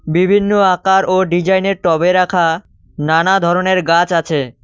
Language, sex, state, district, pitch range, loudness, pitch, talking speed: Bengali, male, West Bengal, Cooch Behar, 165-190 Hz, -13 LUFS, 180 Hz, 130 wpm